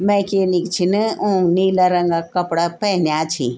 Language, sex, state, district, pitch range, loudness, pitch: Garhwali, female, Uttarakhand, Tehri Garhwal, 170-195 Hz, -18 LUFS, 180 Hz